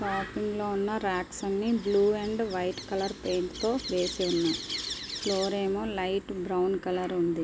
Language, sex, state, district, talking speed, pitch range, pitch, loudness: Telugu, female, Andhra Pradesh, Guntur, 145 wpm, 180-205 Hz, 195 Hz, -30 LUFS